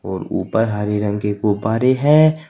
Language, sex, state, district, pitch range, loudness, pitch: Hindi, male, Uttar Pradesh, Saharanpur, 105-135 Hz, -17 LUFS, 110 Hz